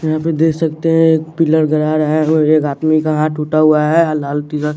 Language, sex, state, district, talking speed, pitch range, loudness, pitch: Hindi, male, Bihar, West Champaran, 250 wpm, 155-160 Hz, -14 LUFS, 155 Hz